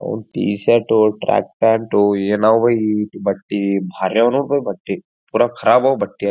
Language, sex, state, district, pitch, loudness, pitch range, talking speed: Kannada, male, Karnataka, Gulbarga, 105 Hz, -17 LUFS, 100-115 Hz, 170 wpm